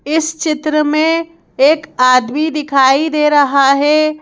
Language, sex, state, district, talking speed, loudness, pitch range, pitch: Hindi, female, Madhya Pradesh, Bhopal, 130 wpm, -13 LUFS, 280-310 Hz, 300 Hz